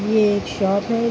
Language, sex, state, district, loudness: Hindi, female, Bihar, Araria, -20 LUFS